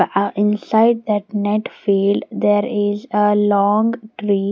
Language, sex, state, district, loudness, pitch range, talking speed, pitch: English, female, Maharashtra, Gondia, -17 LUFS, 205-215 Hz, 145 wpm, 205 Hz